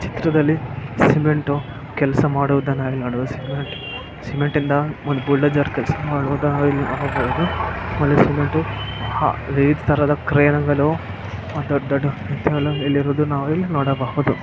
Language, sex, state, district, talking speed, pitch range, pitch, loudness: Kannada, male, Karnataka, Bellary, 105 wpm, 135-145 Hz, 140 Hz, -20 LUFS